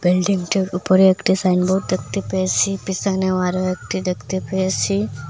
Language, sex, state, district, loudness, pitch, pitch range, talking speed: Bengali, female, Assam, Hailakandi, -19 LUFS, 185 Hz, 180-190 Hz, 135 wpm